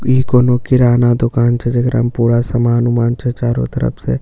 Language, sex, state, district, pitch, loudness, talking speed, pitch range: Maithili, male, Bihar, Katihar, 120 Hz, -14 LUFS, 200 wpm, 120-125 Hz